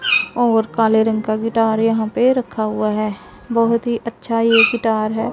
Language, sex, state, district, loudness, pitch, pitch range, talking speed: Hindi, female, Punjab, Pathankot, -17 LUFS, 225 Hz, 220-230 Hz, 180 wpm